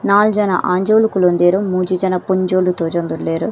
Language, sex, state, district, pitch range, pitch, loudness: Tulu, female, Karnataka, Dakshina Kannada, 180-195 Hz, 185 Hz, -15 LUFS